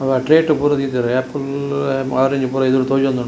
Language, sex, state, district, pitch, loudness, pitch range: Tulu, male, Karnataka, Dakshina Kannada, 135 Hz, -17 LUFS, 130-140 Hz